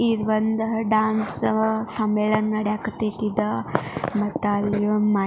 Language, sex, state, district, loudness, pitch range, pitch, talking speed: Kannada, female, Karnataka, Belgaum, -23 LUFS, 210-220 Hz, 215 Hz, 135 wpm